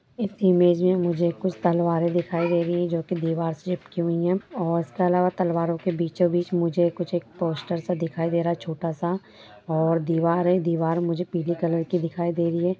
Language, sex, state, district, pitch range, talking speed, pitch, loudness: Hindi, female, Bihar, Jamui, 170-180 Hz, 210 wpm, 170 Hz, -24 LUFS